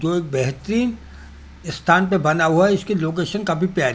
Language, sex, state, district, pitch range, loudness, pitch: Hindi, male, Delhi, New Delhi, 140-195 Hz, -19 LUFS, 170 Hz